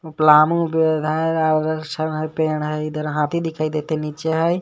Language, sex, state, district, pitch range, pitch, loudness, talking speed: Magahi, male, Jharkhand, Palamu, 155-160 Hz, 155 Hz, -20 LUFS, 170 wpm